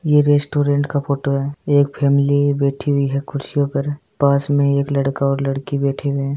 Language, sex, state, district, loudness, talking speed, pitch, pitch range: Hindi, female, Rajasthan, Churu, -18 LUFS, 200 wpm, 140 Hz, 140-145 Hz